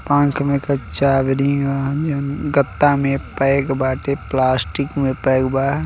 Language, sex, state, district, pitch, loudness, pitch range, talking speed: Bhojpuri, male, Uttar Pradesh, Deoria, 140 Hz, -18 LUFS, 135-140 Hz, 155 wpm